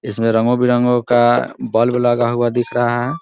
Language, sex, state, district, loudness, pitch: Hindi, male, Bihar, Muzaffarpur, -16 LUFS, 120 Hz